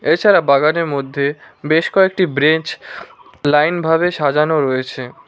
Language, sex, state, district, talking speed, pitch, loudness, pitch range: Bengali, male, West Bengal, Cooch Behar, 100 wpm, 155 Hz, -15 LUFS, 140-165 Hz